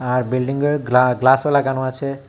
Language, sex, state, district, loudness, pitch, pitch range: Bengali, male, Tripura, West Tripura, -18 LUFS, 130 Hz, 125-140 Hz